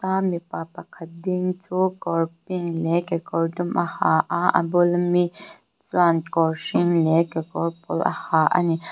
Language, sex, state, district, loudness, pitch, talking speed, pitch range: Mizo, female, Mizoram, Aizawl, -22 LUFS, 170 Hz, 175 wpm, 165-180 Hz